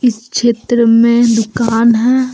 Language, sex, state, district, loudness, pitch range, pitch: Hindi, female, Jharkhand, Deoghar, -11 LUFS, 225-240 Hz, 235 Hz